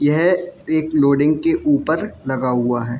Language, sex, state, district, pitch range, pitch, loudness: Hindi, male, Jharkhand, Jamtara, 130-180 Hz, 150 Hz, -18 LUFS